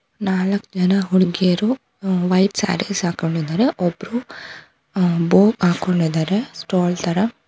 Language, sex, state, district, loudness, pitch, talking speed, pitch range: Kannada, female, Karnataka, Bangalore, -19 LUFS, 185 Hz, 105 wpm, 175-200 Hz